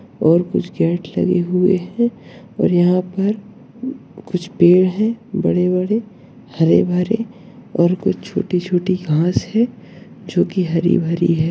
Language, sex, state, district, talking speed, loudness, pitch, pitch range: Hindi, male, Uttarakhand, Uttarkashi, 140 wpm, -17 LUFS, 185 Hz, 175-215 Hz